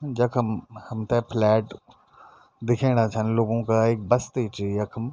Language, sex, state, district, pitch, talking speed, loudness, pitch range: Garhwali, male, Uttarakhand, Tehri Garhwal, 115 Hz, 130 wpm, -24 LUFS, 110-120 Hz